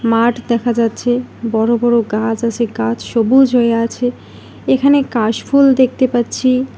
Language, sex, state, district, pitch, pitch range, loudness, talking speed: Bengali, female, West Bengal, Alipurduar, 235 Hz, 225-250 Hz, -14 LUFS, 135 wpm